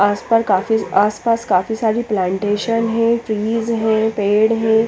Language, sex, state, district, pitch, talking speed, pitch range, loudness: Hindi, female, Chandigarh, Chandigarh, 220 Hz, 160 wpm, 205-230 Hz, -17 LUFS